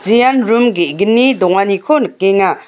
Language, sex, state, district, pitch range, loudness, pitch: Garo, female, Meghalaya, West Garo Hills, 195-240 Hz, -12 LUFS, 220 Hz